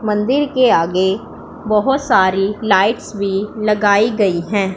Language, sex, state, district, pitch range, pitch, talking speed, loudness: Hindi, female, Punjab, Pathankot, 195-220 Hz, 210 Hz, 125 wpm, -15 LUFS